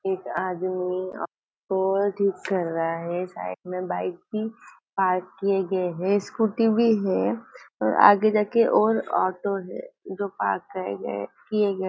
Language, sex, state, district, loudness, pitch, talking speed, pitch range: Hindi, female, Maharashtra, Nagpur, -25 LUFS, 195 Hz, 150 wpm, 185-210 Hz